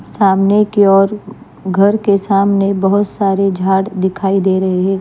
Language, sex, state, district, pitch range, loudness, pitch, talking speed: Hindi, female, Maharashtra, Mumbai Suburban, 190-200 Hz, -13 LUFS, 195 Hz, 155 wpm